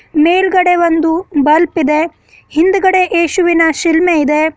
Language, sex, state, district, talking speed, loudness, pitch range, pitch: Kannada, female, Karnataka, Bidar, 105 wpm, -12 LUFS, 315-355 Hz, 335 Hz